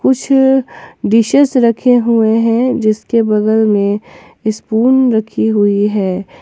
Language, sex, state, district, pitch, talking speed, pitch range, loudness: Hindi, female, Jharkhand, Ranchi, 225 Hz, 110 wpm, 215-245 Hz, -12 LUFS